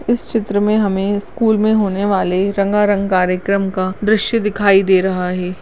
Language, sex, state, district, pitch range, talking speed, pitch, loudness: Hindi, female, Goa, North and South Goa, 190-210 Hz, 180 wpm, 200 Hz, -16 LUFS